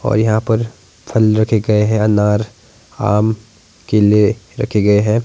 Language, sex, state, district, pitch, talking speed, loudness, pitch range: Hindi, male, Himachal Pradesh, Shimla, 110 Hz, 150 wpm, -15 LUFS, 105-110 Hz